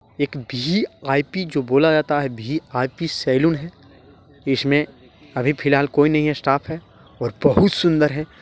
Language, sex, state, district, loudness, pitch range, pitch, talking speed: Hindi, male, Bihar, Jahanabad, -20 LUFS, 135-160 Hz, 145 Hz, 155 wpm